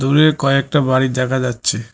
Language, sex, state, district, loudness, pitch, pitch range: Bengali, male, West Bengal, Cooch Behar, -16 LUFS, 130 Hz, 130-140 Hz